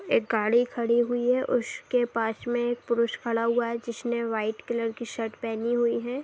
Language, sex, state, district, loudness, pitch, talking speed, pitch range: Hindi, female, Bihar, Saharsa, -27 LUFS, 235 Hz, 200 wpm, 230-240 Hz